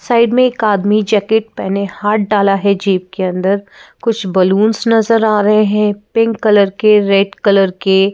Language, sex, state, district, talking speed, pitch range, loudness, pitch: Hindi, female, Madhya Pradesh, Bhopal, 185 wpm, 195-220 Hz, -13 LUFS, 205 Hz